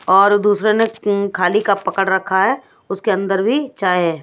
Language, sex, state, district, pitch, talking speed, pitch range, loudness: Hindi, female, Odisha, Nuapada, 195 Hz, 185 wpm, 190-210 Hz, -16 LUFS